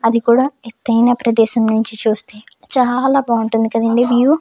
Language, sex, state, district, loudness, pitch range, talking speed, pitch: Telugu, female, Andhra Pradesh, Chittoor, -15 LUFS, 225-250 Hz, 150 wpm, 230 Hz